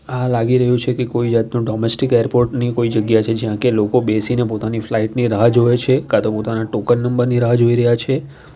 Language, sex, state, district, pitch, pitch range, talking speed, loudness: Gujarati, male, Gujarat, Valsad, 120 Hz, 115-125 Hz, 230 wpm, -16 LUFS